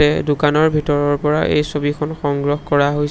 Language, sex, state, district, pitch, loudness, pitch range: Assamese, male, Assam, Sonitpur, 145 Hz, -17 LUFS, 145-150 Hz